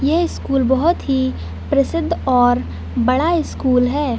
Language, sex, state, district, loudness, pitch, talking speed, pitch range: Hindi, female, Chhattisgarh, Bilaspur, -18 LUFS, 260 Hz, 115 wpm, 235-300 Hz